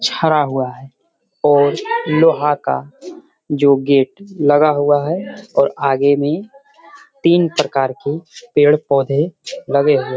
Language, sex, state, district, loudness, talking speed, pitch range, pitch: Hindi, male, Bihar, Jamui, -16 LUFS, 125 wpm, 140-175 Hz, 150 Hz